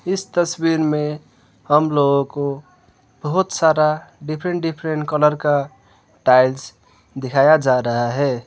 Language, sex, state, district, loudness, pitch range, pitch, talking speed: Hindi, male, West Bengal, Alipurduar, -18 LUFS, 130-155 Hz, 145 Hz, 120 wpm